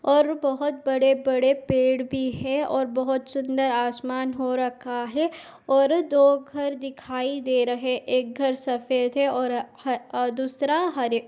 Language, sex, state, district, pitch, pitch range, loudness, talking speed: Hindi, female, Uttar Pradesh, Deoria, 265 Hz, 255-280 Hz, -24 LUFS, 165 wpm